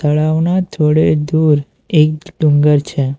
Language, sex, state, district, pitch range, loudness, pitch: Gujarati, male, Gujarat, Valsad, 150-160 Hz, -14 LUFS, 155 Hz